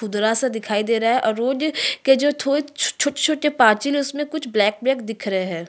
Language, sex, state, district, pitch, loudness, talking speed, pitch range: Hindi, female, Chhattisgarh, Sukma, 255 Hz, -20 LUFS, 230 wpm, 220-290 Hz